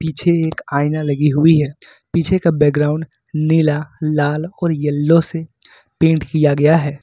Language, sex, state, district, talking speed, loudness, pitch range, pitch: Hindi, male, Jharkhand, Ranchi, 155 wpm, -16 LUFS, 145-165 Hz, 155 Hz